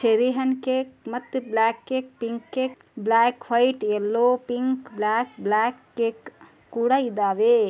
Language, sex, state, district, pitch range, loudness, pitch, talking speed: Kannada, male, Karnataka, Dharwad, 225-260 Hz, -24 LUFS, 245 Hz, 130 wpm